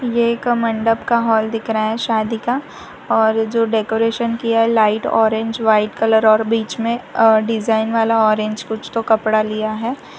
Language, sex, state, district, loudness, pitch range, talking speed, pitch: Hindi, female, Gujarat, Valsad, -17 LUFS, 220-230 Hz, 175 wpm, 225 Hz